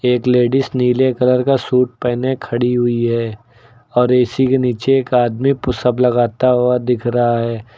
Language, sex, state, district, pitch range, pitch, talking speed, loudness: Hindi, male, Uttar Pradesh, Lucknow, 120-125 Hz, 125 Hz, 170 wpm, -16 LUFS